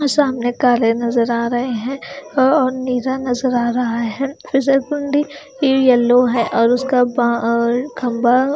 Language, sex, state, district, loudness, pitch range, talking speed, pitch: Hindi, female, Haryana, Charkhi Dadri, -17 LUFS, 240-270 Hz, 135 wpm, 250 Hz